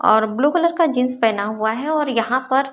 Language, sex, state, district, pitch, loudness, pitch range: Hindi, female, Maharashtra, Chandrapur, 255 Hz, -19 LUFS, 220-295 Hz